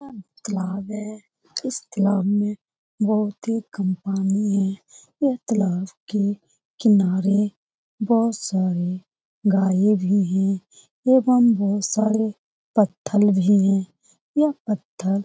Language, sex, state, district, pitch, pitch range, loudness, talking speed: Hindi, female, Bihar, Lakhisarai, 205 Hz, 195-215 Hz, -22 LUFS, 110 wpm